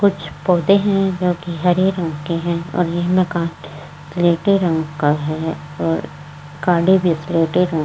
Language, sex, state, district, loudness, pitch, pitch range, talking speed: Hindi, female, Uttar Pradesh, Varanasi, -18 LUFS, 170 Hz, 155-180 Hz, 170 wpm